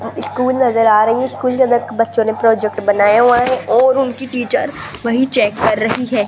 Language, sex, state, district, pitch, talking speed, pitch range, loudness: Hindi, female, Rajasthan, Jaipur, 240 Hz, 210 wpm, 220-255 Hz, -14 LUFS